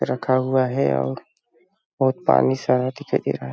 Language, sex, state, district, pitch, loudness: Hindi, male, Chhattisgarh, Balrampur, 100 Hz, -21 LUFS